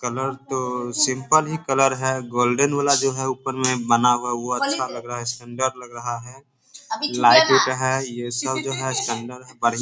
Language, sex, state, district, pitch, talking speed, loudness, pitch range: Hindi, male, Bihar, Bhagalpur, 130 Hz, 215 wpm, -21 LUFS, 120-135 Hz